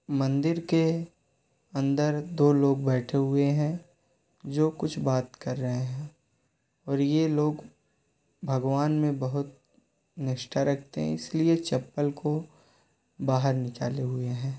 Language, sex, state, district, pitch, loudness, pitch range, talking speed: Hindi, male, Uttar Pradesh, Muzaffarnagar, 140 Hz, -28 LUFS, 130-155 Hz, 125 wpm